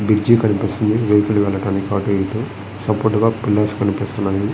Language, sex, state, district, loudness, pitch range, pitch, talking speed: Telugu, male, Andhra Pradesh, Srikakulam, -18 LUFS, 100-110 Hz, 105 Hz, 90 wpm